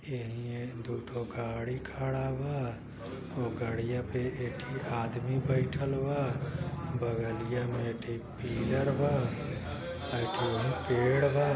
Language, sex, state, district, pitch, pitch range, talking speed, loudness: Bhojpuri, male, Uttar Pradesh, Gorakhpur, 125 Hz, 120-135 Hz, 120 wpm, -33 LUFS